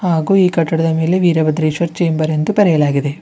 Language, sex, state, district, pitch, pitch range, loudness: Kannada, female, Karnataka, Bidar, 165 Hz, 155-175 Hz, -15 LUFS